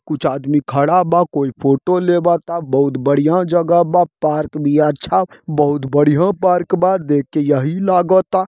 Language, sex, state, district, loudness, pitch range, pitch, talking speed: Bhojpuri, male, Jharkhand, Sahebganj, -15 LUFS, 145-180 Hz, 155 Hz, 170 wpm